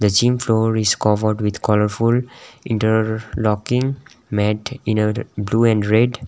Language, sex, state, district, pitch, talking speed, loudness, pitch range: English, male, Sikkim, Gangtok, 110 Hz, 125 wpm, -19 LUFS, 105-120 Hz